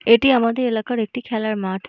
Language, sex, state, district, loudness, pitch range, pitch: Bengali, female, West Bengal, North 24 Parganas, -19 LUFS, 215-245 Hz, 230 Hz